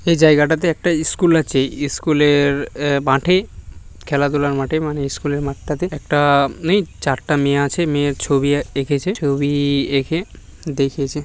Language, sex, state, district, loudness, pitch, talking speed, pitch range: Bengali, male, West Bengal, Malda, -18 LUFS, 145 Hz, 115 wpm, 140-155 Hz